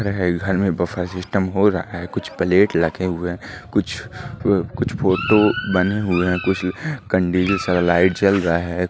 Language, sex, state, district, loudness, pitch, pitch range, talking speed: Hindi, male, Chhattisgarh, Bastar, -19 LUFS, 95 Hz, 90-100 Hz, 170 wpm